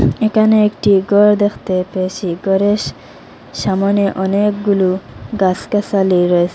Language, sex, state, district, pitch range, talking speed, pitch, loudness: Bengali, female, Assam, Hailakandi, 185-205 Hz, 90 wpm, 195 Hz, -15 LUFS